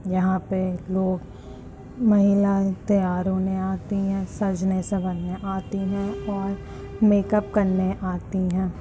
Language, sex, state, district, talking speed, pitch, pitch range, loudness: Hindi, female, Uttar Pradesh, Muzaffarnagar, 120 wpm, 190 Hz, 185-200 Hz, -24 LUFS